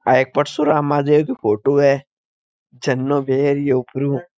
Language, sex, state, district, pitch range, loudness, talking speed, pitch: Marwari, male, Rajasthan, Nagaur, 130-145 Hz, -18 LUFS, 150 wpm, 140 Hz